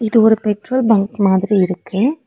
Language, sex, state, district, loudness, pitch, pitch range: Tamil, female, Tamil Nadu, Nilgiris, -15 LUFS, 215 Hz, 195-225 Hz